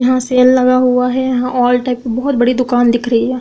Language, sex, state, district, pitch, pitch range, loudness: Hindi, female, Uttar Pradesh, Budaun, 250 Hz, 245-255 Hz, -13 LUFS